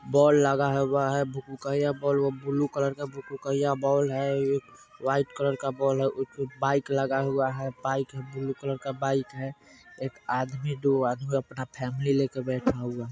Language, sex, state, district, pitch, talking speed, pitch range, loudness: Hindi, male, Bihar, Vaishali, 135 Hz, 185 wpm, 135-140 Hz, -28 LUFS